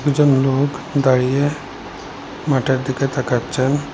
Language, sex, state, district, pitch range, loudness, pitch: Bengali, male, Assam, Hailakandi, 130-140 Hz, -18 LUFS, 135 Hz